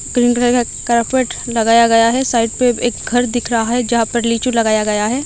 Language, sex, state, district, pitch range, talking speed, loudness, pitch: Hindi, female, Odisha, Malkangiri, 230-245 Hz, 230 wpm, -15 LUFS, 235 Hz